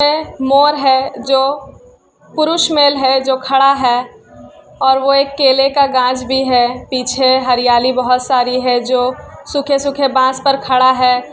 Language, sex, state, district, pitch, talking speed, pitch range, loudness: Hindi, female, Bihar, Kishanganj, 265 Hz, 160 wpm, 255-275 Hz, -13 LUFS